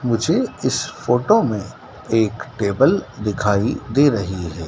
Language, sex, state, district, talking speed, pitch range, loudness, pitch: Hindi, male, Madhya Pradesh, Dhar, 130 wpm, 100-125 Hz, -19 LUFS, 110 Hz